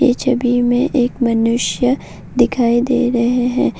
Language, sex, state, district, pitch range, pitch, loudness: Hindi, female, Assam, Kamrup Metropolitan, 240-255 Hz, 245 Hz, -16 LUFS